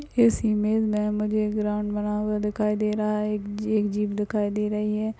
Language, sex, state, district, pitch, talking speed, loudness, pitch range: Hindi, female, Bihar, Madhepura, 210 Hz, 230 wpm, -25 LUFS, 210-215 Hz